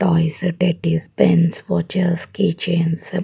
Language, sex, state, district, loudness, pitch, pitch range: Telugu, female, Andhra Pradesh, Guntur, -19 LUFS, 170 Hz, 165-180 Hz